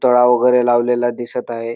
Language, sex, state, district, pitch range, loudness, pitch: Marathi, male, Maharashtra, Dhule, 120-125 Hz, -15 LUFS, 120 Hz